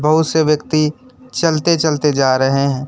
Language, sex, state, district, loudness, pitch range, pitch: Hindi, male, West Bengal, Alipurduar, -15 LUFS, 135-155 Hz, 150 Hz